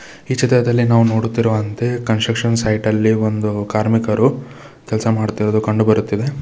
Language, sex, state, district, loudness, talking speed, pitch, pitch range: Kannada, male, Karnataka, Bidar, -17 LUFS, 110 wpm, 110 Hz, 110-120 Hz